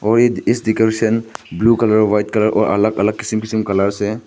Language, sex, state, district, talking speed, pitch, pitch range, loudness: Hindi, male, Arunachal Pradesh, Papum Pare, 195 wpm, 110 Hz, 105-110 Hz, -16 LUFS